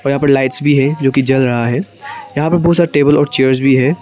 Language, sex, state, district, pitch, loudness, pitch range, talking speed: Hindi, male, Arunachal Pradesh, Papum Pare, 140 Hz, -13 LUFS, 135-145 Hz, 285 wpm